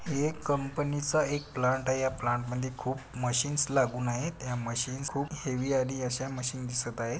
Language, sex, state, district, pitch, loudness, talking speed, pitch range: Marathi, male, Maharashtra, Pune, 130 Hz, -31 LUFS, 190 wpm, 125-140 Hz